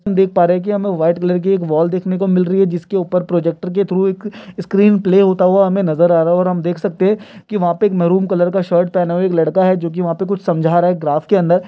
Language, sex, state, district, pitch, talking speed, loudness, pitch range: Hindi, male, Bihar, Kishanganj, 185 Hz, 310 wpm, -15 LUFS, 175-195 Hz